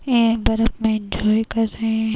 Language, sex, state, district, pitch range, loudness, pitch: Hindi, female, Uttar Pradesh, Jyotiba Phule Nagar, 220-225 Hz, -20 LUFS, 225 Hz